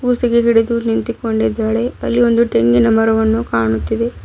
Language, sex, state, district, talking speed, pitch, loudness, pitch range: Kannada, female, Karnataka, Bidar, 125 wpm, 225 Hz, -15 LUFS, 220-235 Hz